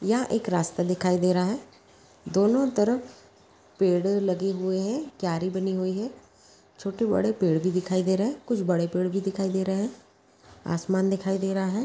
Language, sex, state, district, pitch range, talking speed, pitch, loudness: Hindi, female, Chhattisgarh, Kabirdham, 185-210 Hz, 190 wpm, 190 Hz, -26 LUFS